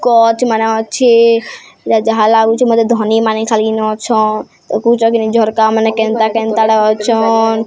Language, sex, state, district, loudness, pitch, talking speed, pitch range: Odia, female, Odisha, Sambalpur, -12 LUFS, 225 Hz, 140 wpm, 220-230 Hz